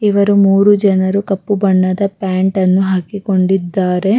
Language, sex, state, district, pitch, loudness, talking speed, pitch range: Kannada, female, Karnataka, Raichur, 195 Hz, -13 LUFS, 130 wpm, 185-200 Hz